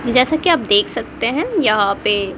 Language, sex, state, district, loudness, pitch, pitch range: Hindi, female, Bihar, Kaimur, -16 LUFS, 215 Hz, 205-270 Hz